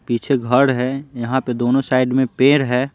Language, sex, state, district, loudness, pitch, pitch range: Hindi, male, Bihar, Patna, -17 LUFS, 130 Hz, 125-135 Hz